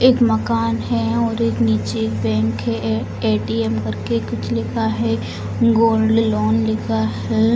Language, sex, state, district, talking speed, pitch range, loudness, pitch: Hindi, female, Bihar, Gopalganj, 145 wpm, 110-115 Hz, -19 LUFS, 110 Hz